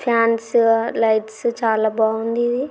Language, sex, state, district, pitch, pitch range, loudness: Telugu, female, Andhra Pradesh, Srikakulam, 225 Hz, 220-235 Hz, -19 LUFS